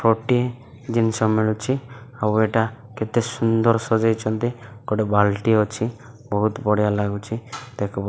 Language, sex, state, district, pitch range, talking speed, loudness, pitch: Odia, male, Odisha, Malkangiri, 110-120 Hz, 120 wpm, -22 LUFS, 115 Hz